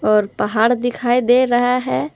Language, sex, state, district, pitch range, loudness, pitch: Hindi, female, Jharkhand, Palamu, 210-245 Hz, -16 LUFS, 240 Hz